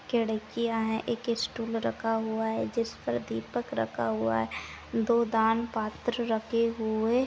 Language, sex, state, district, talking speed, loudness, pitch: Hindi, female, Bihar, Jahanabad, 150 wpm, -30 LUFS, 225 Hz